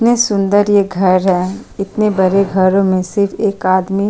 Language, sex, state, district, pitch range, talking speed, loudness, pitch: Hindi, female, Uttar Pradesh, Jyotiba Phule Nagar, 185-205 Hz, 190 wpm, -14 LUFS, 195 Hz